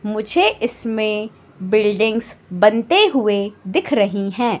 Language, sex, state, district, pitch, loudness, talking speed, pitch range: Hindi, female, Madhya Pradesh, Katni, 215 Hz, -18 LUFS, 105 wpm, 205-235 Hz